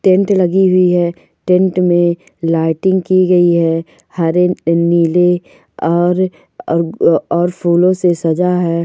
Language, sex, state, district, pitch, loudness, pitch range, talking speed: Hindi, female, Goa, North and South Goa, 175 Hz, -13 LUFS, 170-185 Hz, 135 wpm